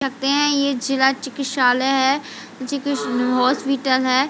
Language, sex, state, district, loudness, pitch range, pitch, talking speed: Hindi, female, Uttar Pradesh, Budaun, -19 LUFS, 260-275 Hz, 270 Hz, 140 wpm